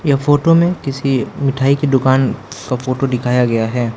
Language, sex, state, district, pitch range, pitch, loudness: Hindi, male, Arunachal Pradesh, Lower Dibang Valley, 125-140 Hz, 135 Hz, -15 LUFS